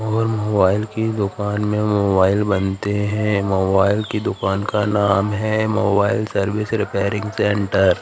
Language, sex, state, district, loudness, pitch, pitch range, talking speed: Hindi, male, Madhya Pradesh, Katni, -19 LUFS, 105 Hz, 100-105 Hz, 140 wpm